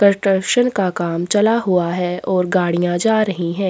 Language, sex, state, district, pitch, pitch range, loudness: Hindi, female, Chhattisgarh, Korba, 185 Hz, 175-200 Hz, -17 LUFS